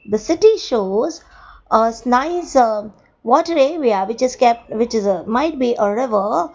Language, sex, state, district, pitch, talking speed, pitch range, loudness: English, female, Gujarat, Valsad, 245 Hz, 155 wpm, 215-315 Hz, -17 LUFS